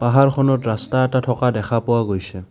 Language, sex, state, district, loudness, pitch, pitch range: Assamese, male, Assam, Kamrup Metropolitan, -19 LUFS, 120 Hz, 110-130 Hz